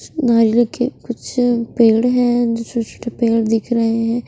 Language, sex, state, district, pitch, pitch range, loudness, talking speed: Hindi, female, Punjab, Pathankot, 235 Hz, 230-240 Hz, -17 LUFS, 170 wpm